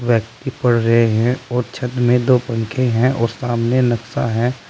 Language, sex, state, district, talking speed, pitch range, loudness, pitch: Hindi, male, Uttar Pradesh, Saharanpur, 180 wpm, 115-125 Hz, -17 LUFS, 120 Hz